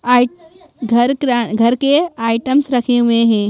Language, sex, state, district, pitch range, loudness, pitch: Hindi, female, Madhya Pradesh, Bhopal, 235-280 Hz, -15 LUFS, 245 Hz